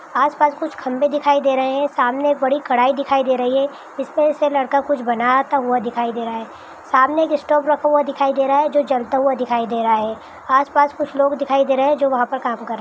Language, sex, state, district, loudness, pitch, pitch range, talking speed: Hindi, female, Bihar, Araria, -18 LUFS, 275 Hz, 250-290 Hz, 270 wpm